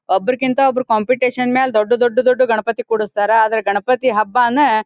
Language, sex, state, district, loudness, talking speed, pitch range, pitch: Kannada, female, Karnataka, Dharwad, -15 LUFS, 150 wpm, 220-255 Hz, 245 Hz